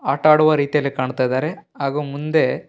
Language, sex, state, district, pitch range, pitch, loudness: Kannada, male, Karnataka, Bellary, 130-155 Hz, 140 Hz, -19 LUFS